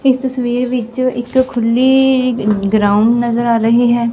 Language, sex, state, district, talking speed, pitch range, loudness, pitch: Punjabi, female, Punjab, Fazilka, 145 wpm, 230-255 Hz, -14 LUFS, 240 Hz